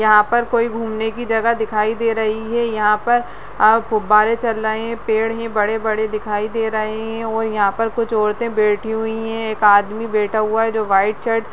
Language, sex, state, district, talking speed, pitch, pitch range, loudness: Hindi, female, Uttarakhand, Tehri Garhwal, 210 wpm, 220 Hz, 215-225 Hz, -18 LUFS